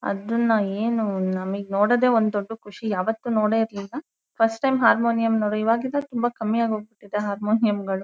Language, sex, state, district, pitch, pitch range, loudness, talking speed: Kannada, female, Karnataka, Shimoga, 220 Hz, 205-230 Hz, -23 LUFS, 140 wpm